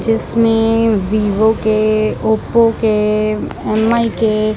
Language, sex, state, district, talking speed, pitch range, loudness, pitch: Hindi, male, Punjab, Kapurthala, 105 wpm, 215-225 Hz, -14 LUFS, 220 Hz